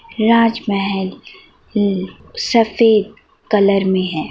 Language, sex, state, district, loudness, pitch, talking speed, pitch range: Hindi, female, Uttar Pradesh, Varanasi, -16 LUFS, 215 Hz, 85 wpm, 195-230 Hz